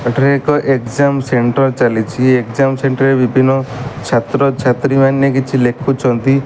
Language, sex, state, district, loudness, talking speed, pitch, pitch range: Odia, male, Odisha, Malkangiri, -13 LUFS, 100 wpm, 135 Hz, 125-135 Hz